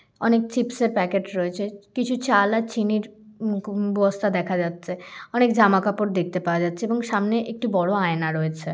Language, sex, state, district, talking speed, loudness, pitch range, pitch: Bengali, female, West Bengal, Kolkata, 180 wpm, -23 LUFS, 180-225 Hz, 205 Hz